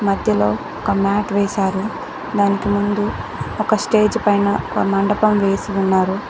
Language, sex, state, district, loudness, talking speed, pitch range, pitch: Telugu, female, Telangana, Mahabubabad, -18 LUFS, 125 wpm, 195-205 Hz, 200 Hz